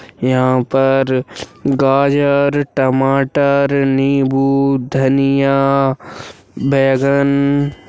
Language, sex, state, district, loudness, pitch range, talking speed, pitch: Hindi, male, Uttarakhand, Uttarkashi, -14 LUFS, 135-140 Hz, 55 wpm, 135 Hz